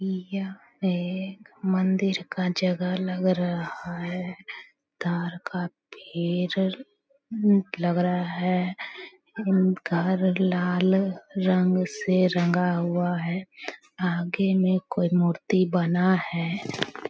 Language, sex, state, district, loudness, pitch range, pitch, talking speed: Hindi, female, Bihar, Samastipur, -26 LUFS, 180-190 Hz, 185 Hz, 100 wpm